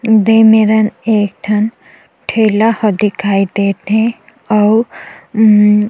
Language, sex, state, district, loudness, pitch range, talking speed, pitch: Chhattisgarhi, female, Chhattisgarh, Jashpur, -12 LUFS, 210-220 Hz, 110 wpm, 215 Hz